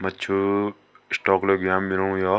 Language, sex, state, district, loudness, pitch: Garhwali, male, Uttarakhand, Tehri Garhwal, -23 LUFS, 95 Hz